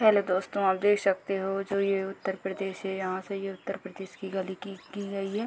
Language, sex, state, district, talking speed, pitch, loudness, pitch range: Hindi, female, Uttar Pradesh, Deoria, 240 wpm, 195 Hz, -30 LUFS, 190-200 Hz